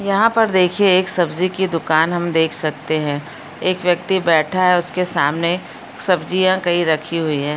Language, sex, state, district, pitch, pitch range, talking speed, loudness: Hindi, female, Uttarakhand, Uttarkashi, 175 Hz, 160-185 Hz, 175 wpm, -16 LUFS